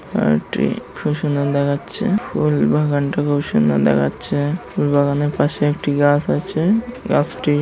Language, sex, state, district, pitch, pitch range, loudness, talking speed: Bengali, male, West Bengal, Malda, 145 Hz, 140-150 Hz, -18 LUFS, 125 wpm